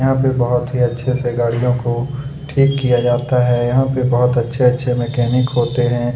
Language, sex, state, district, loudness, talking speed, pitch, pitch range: Hindi, male, Chhattisgarh, Kabirdham, -16 LUFS, 195 wpm, 125 Hz, 120-130 Hz